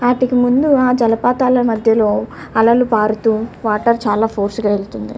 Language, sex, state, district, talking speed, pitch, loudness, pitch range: Telugu, female, Andhra Pradesh, Chittoor, 140 wpm, 225 Hz, -15 LUFS, 215-245 Hz